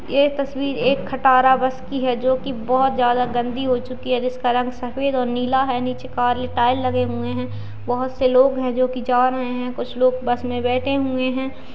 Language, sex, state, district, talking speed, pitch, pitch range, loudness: Hindi, female, Bihar, Madhepura, 220 wpm, 255 Hz, 245-260 Hz, -20 LUFS